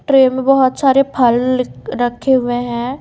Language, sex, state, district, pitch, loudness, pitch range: Hindi, female, Bihar, Katihar, 255 Hz, -14 LUFS, 245-270 Hz